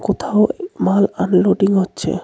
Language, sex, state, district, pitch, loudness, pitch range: Bengali, male, West Bengal, Cooch Behar, 200 Hz, -16 LUFS, 195-210 Hz